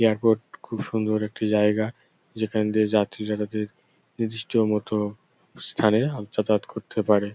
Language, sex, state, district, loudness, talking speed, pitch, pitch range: Bengali, male, West Bengal, North 24 Parganas, -25 LUFS, 120 wpm, 110 Hz, 105-110 Hz